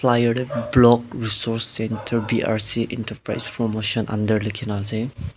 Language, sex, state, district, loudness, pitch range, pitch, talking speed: Nagamese, male, Nagaland, Dimapur, -21 LUFS, 110-120 Hz, 115 Hz, 125 wpm